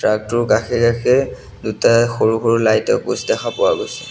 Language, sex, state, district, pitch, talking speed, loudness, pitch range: Assamese, male, Assam, Sonitpur, 120 Hz, 175 wpm, -16 LUFS, 110-125 Hz